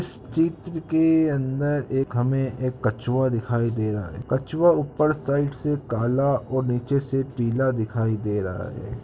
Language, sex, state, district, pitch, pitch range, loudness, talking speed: Hindi, male, Andhra Pradesh, Krishna, 130 Hz, 120-145 Hz, -24 LUFS, 165 wpm